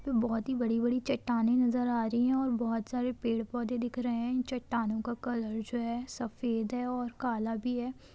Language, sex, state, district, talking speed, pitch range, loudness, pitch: Hindi, female, Bihar, Lakhisarai, 205 wpm, 230-250 Hz, -32 LUFS, 240 Hz